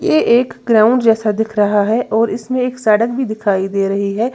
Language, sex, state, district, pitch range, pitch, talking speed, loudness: Hindi, female, Uttar Pradesh, Lalitpur, 205-235 Hz, 220 Hz, 220 wpm, -15 LUFS